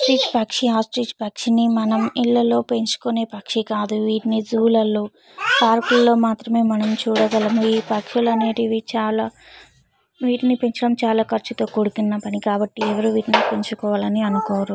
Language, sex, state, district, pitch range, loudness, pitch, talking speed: Telugu, female, Telangana, Nalgonda, 215-235 Hz, -19 LUFS, 225 Hz, 125 wpm